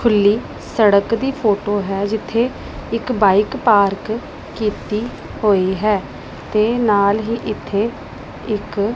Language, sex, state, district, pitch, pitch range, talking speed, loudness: Punjabi, female, Punjab, Pathankot, 210 Hz, 200-230 Hz, 120 wpm, -18 LUFS